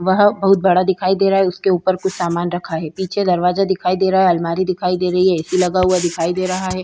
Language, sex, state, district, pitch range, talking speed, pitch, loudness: Hindi, female, Goa, North and South Goa, 180-190 Hz, 270 wpm, 185 Hz, -17 LUFS